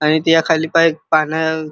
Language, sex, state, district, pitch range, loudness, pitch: Marathi, male, Maharashtra, Chandrapur, 155-165 Hz, -15 LUFS, 160 Hz